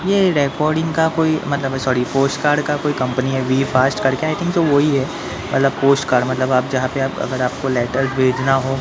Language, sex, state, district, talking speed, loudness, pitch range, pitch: Hindi, male, Maharashtra, Mumbai Suburban, 210 wpm, -18 LUFS, 130-150 Hz, 135 Hz